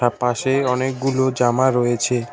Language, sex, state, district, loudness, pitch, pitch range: Bengali, male, West Bengal, Cooch Behar, -19 LUFS, 125 Hz, 120-130 Hz